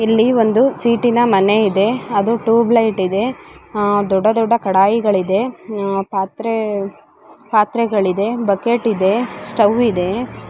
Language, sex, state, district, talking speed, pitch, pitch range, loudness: Kannada, female, Karnataka, Gulbarga, 105 wpm, 215 Hz, 200-235 Hz, -16 LUFS